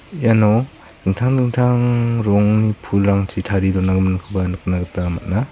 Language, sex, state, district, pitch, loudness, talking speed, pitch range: Garo, male, Meghalaya, South Garo Hills, 100 Hz, -18 LUFS, 110 wpm, 95-115 Hz